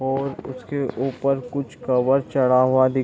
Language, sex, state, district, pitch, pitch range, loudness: Hindi, male, Bihar, East Champaran, 130 Hz, 130-135 Hz, -22 LUFS